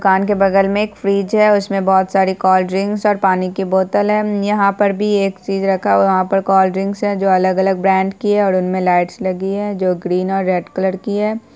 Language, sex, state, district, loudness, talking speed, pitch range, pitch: Hindi, female, Bihar, Purnia, -15 LUFS, 240 wpm, 185-205 Hz, 195 Hz